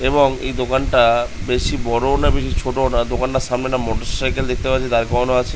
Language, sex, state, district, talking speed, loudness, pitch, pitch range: Bengali, male, West Bengal, Jhargram, 215 wpm, -19 LUFS, 125 Hz, 120-130 Hz